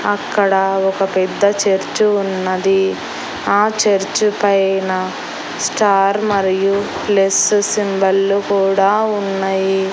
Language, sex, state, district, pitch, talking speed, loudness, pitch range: Telugu, female, Andhra Pradesh, Annamaya, 195 Hz, 85 wpm, -16 LUFS, 195-205 Hz